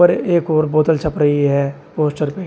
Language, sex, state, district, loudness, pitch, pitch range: Hindi, male, Uttar Pradesh, Shamli, -17 LUFS, 155 Hz, 145-160 Hz